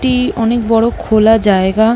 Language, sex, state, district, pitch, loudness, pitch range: Bengali, female, West Bengal, North 24 Parganas, 225 Hz, -12 LUFS, 220-235 Hz